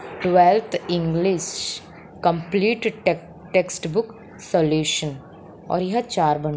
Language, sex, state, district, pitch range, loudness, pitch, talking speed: Hindi, female, Bihar, Sitamarhi, 165-190 Hz, -22 LUFS, 180 Hz, 110 wpm